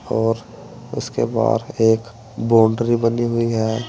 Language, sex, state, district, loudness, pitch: Hindi, male, Uttar Pradesh, Saharanpur, -19 LUFS, 115 Hz